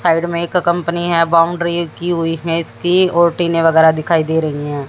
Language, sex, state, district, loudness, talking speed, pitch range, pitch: Hindi, female, Haryana, Jhajjar, -15 LUFS, 210 wpm, 165-170 Hz, 170 Hz